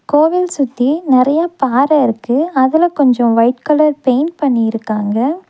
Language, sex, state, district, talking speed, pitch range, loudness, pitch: Tamil, female, Tamil Nadu, Nilgiris, 120 wpm, 245-305 Hz, -13 LUFS, 270 Hz